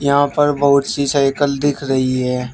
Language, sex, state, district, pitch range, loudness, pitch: Hindi, male, Uttar Pradesh, Shamli, 135-145 Hz, -16 LUFS, 140 Hz